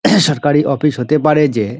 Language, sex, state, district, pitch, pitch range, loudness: Bengali, male, West Bengal, Dakshin Dinajpur, 150 Hz, 140-150 Hz, -14 LUFS